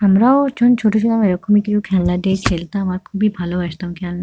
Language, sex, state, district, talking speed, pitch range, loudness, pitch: Bengali, female, West Bengal, Kolkata, 200 wpm, 180-215 Hz, -17 LUFS, 195 Hz